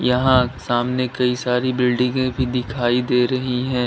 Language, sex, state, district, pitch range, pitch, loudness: Hindi, male, Uttar Pradesh, Lalitpur, 125-130 Hz, 125 Hz, -19 LUFS